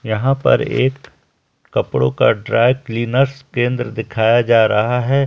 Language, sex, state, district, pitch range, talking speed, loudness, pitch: Hindi, male, Bihar, Jamui, 110-130 Hz, 135 wpm, -16 LUFS, 120 Hz